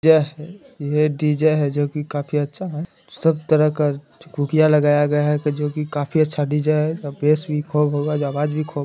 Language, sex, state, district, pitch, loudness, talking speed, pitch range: Hindi, male, Bihar, Jamui, 150 Hz, -20 LUFS, 195 wpm, 145-155 Hz